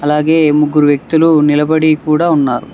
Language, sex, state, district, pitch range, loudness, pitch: Telugu, male, Telangana, Hyderabad, 150-160 Hz, -11 LUFS, 150 Hz